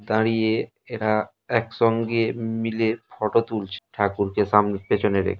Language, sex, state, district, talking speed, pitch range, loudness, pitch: Bengali, male, West Bengal, North 24 Parganas, 120 wpm, 105-115 Hz, -23 LUFS, 110 Hz